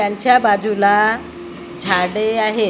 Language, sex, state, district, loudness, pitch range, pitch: Marathi, female, Maharashtra, Gondia, -16 LUFS, 180-215 Hz, 205 Hz